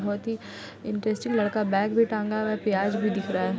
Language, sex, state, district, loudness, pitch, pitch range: Hindi, female, Bihar, Muzaffarpur, -26 LUFS, 215 Hz, 205-215 Hz